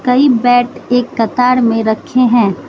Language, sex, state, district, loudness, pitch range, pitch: Hindi, female, Manipur, Imphal West, -12 LUFS, 230-250 Hz, 245 Hz